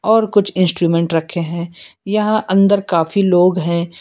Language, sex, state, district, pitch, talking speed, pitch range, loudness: Hindi, male, Uttar Pradesh, Lucknow, 180 Hz, 150 wpm, 170-205 Hz, -15 LUFS